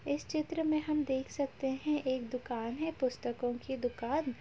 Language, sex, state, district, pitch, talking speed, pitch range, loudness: Hindi, female, Uttar Pradesh, Jalaun, 265 Hz, 190 wpm, 245-300 Hz, -35 LUFS